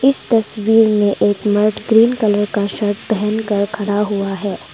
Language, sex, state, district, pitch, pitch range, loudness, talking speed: Hindi, female, Arunachal Pradesh, Longding, 210 Hz, 205-220 Hz, -15 LUFS, 165 wpm